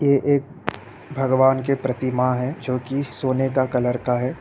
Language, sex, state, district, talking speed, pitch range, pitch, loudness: Hindi, female, Bihar, Saran, 175 wpm, 125-140 Hz, 130 Hz, -22 LUFS